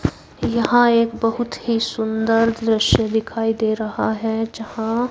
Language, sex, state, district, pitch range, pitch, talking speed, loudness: Hindi, female, Haryana, Jhajjar, 220-230 Hz, 225 Hz, 130 wpm, -19 LUFS